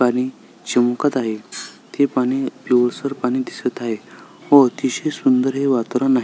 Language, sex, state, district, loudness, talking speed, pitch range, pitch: Marathi, male, Maharashtra, Sindhudurg, -19 LUFS, 145 wpm, 120-135 Hz, 125 Hz